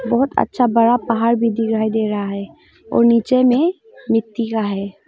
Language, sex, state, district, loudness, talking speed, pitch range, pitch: Hindi, female, Arunachal Pradesh, Longding, -17 LUFS, 175 wpm, 220-245 Hz, 230 Hz